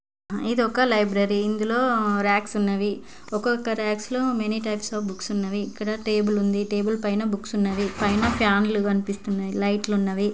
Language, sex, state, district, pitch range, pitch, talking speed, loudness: Telugu, female, Andhra Pradesh, Guntur, 200-220 Hz, 210 Hz, 160 wpm, -24 LUFS